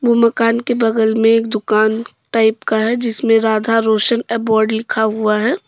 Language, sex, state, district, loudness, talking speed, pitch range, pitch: Hindi, female, Jharkhand, Deoghar, -15 LUFS, 180 wpm, 220-230 Hz, 225 Hz